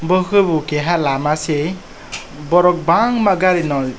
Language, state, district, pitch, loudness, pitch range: Kokborok, Tripura, West Tripura, 170 Hz, -16 LUFS, 150-185 Hz